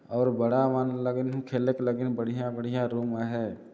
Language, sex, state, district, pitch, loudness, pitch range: Chhattisgarhi, male, Chhattisgarh, Jashpur, 125 Hz, -28 LUFS, 120-125 Hz